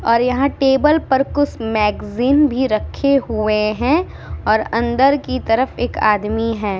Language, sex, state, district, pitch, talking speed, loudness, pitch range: Hindi, female, Uttar Pradesh, Muzaffarnagar, 240 Hz, 150 wpm, -17 LUFS, 215-275 Hz